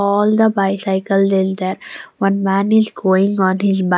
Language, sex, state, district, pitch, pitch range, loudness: English, female, Punjab, Pathankot, 195 Hz, 190-200 Hz, -16 LUFS